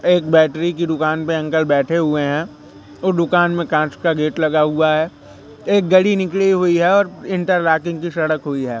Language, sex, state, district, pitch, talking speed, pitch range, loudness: Hindi, male, Madhya Pradesh, Katni, 160 Hz, 205 wpm, 155-175 Hz, -17 LUFS